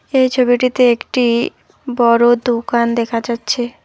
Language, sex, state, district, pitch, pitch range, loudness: Bengali, female, West Bengal, Alipurduar, 240 Hz, 235-250 Hz, -15 LUFS